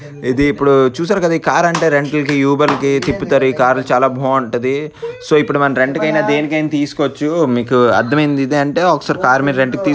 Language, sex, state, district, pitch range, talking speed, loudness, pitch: Telugu, male, Andhra Pradesh, Krishna, 135-150 Hz, 200 wpm, -14 LUFS, 145 Hz